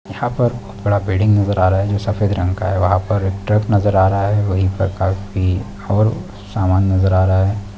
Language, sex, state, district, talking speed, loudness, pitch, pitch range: Hindi, male, Chhattisgarh, Balrampur, 245 wpm, -17 LUFS, 100 Hz, 95-105 Hz